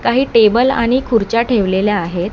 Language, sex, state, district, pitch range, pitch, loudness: Marathi, male, Maharashtra, Mumbai Suburban, 205-245 Hz, 230 Hz, -14 LUFS